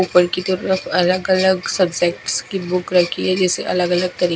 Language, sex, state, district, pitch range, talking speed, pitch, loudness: Hindi, female, Himachal Pradesh, Shimla, 180-185 Hz, 195 wpm, 180 Hz, -18 LUFS